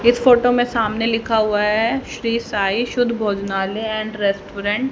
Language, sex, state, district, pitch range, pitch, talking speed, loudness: Hindi, female, Haryana, Rohtak, 205-240 Hz, 220 Hz, 170 wpm, -19 LUFS